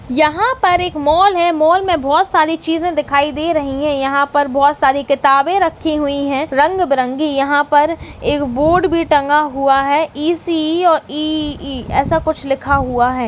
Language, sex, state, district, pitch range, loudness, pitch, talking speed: Hindi, female, Uttarakhand, Uttarkashi, 280-325 Hz, -15 LUFS, 300 Hz, 200 wpm